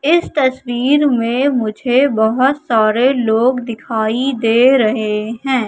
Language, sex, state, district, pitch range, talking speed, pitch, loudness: Hindi, female, Madhya Pradesh, Katni, 225-265 Hz, 115 wpm, 245 Hz, -15 LUFS